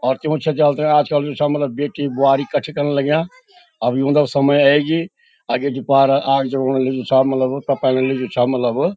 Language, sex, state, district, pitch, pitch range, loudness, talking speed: Garhwali, male, Uttarakhand, Uttarkashi, 140 Hz, 135-150 Hz, -17 LUFS, 185 wpm